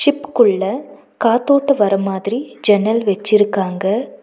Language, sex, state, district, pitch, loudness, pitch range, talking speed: Tamil, female, Tamil Nadu, Nilgiris, 215 Hz, -16 LUFS, 200-280 Hz, 85 wpm